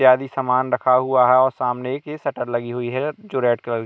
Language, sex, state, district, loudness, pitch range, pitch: Hindi, male, Madhya Pradesh, Katni, -20 LUFS, 125-135 Hz, 130 Hz